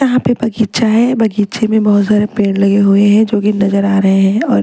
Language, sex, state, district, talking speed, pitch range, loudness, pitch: Hindi, female, Maharashtra, Mumbai Suburban, 245 wpm, 200-225 Hz, -12 LUFS, 210 Hz